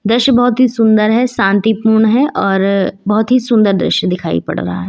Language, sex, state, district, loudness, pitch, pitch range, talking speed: Hindi, female, Uttar Pradesh, Lucknow, -12 LUFS, 220 Hz, 195-235 Hz, 195 wpm